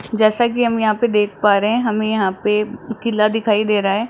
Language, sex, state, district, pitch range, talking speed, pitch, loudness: Hindi, male, Rajasthan, Jaipur, 210-230 Hz, 235 wpm, 215 Hz, -17 LUFS